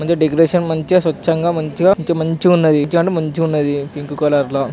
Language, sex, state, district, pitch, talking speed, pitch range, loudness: Telugu, male, Telangana, Nalgonda, 160 Hz, 150 wpm, 150-170 Hz, -15 LUFS